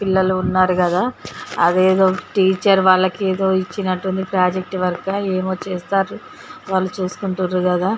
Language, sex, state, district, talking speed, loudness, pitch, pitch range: Telugu, female, Telangana, Karimnagar, 120 wpm, -18 LUFS, 185 Hz, 185-190 Hz